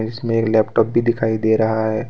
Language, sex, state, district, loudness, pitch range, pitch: Hindi, male, Jharkhand, Deoghar, -18 LUFS, 110-115 Hz, 110 Hz